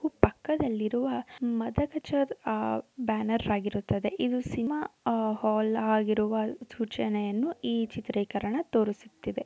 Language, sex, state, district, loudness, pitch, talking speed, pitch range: Kannada, female, Karnataka, Dakshina Kannada, -30 LUFS, 225 Hz, 95 wpm, 215-255 Hz